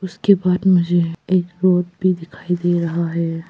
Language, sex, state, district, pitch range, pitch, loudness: Hindi, female, Arunachal Pradesh, Papum Pare, 170-185 Hz, 175 Hz, -18 LUFS